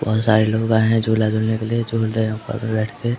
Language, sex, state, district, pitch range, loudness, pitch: Hindi, male, Bihar, Samastipur, 110-115 Hz, -19 LUFS, 110 Hz